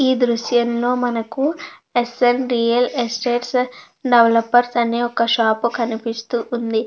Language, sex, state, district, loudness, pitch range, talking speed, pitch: Telugu, female, Andhra Pradesh, Krishna, -18 LUFS, 230-245 Hz, 130 wpm, 240 Hz